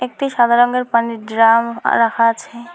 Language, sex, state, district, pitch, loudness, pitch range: Bengali, female, West Bengal, Alipurduar, 235 Hz, -15 LUFS, 230-245 Hz